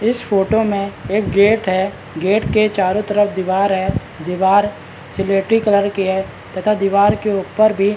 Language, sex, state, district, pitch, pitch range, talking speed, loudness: Hindi, male, Bihar, Madhepura, 200 Hz, 190-210 Hz, 180 wpm, -17 LUFS